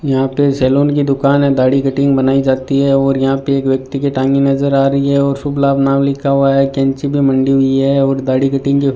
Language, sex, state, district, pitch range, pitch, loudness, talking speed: Hindi, male, Rajasthan, Bikaner, 135-140 Hz, 135 Hz, -13 LUFS, 260 wpm